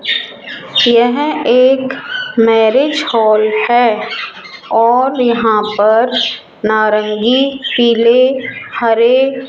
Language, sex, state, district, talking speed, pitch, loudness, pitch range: Hindi, male, Rajasthan, Jaipur, 75 wpm, 235 Hz, -12 LUFS, 220-260 Hz